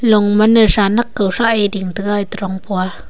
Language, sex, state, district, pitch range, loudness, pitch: Wancho, female, Arunachal Pradesh, Longding, 195-220 Hz, -15 LUFS, 205 Hz